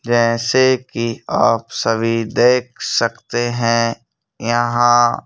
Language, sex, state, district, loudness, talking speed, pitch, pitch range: Hindi, male, Madhya Pradesh, Bhopal, -17 LUFS, 100 wpm, 120 Hz, 115-120 Hz